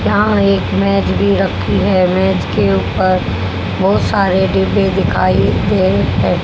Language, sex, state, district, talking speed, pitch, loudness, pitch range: Hindi, female, Haryana, Rohtak, 150 wpm, 95 Hz, -14 LUFS, 95-100 Hz